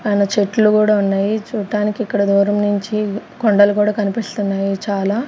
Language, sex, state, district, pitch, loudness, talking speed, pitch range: Telugu, female, Andhra Pradesh, Sri Satya Sai, 205 Hz, -17 LUFS, 125 wpm, 200-215 Hz